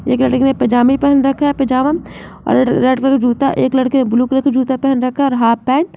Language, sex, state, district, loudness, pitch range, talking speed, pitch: Hindi, female, Bihar, Saran, -14 LUFS, 255-275 Hz, 280 wpm, 265 Hz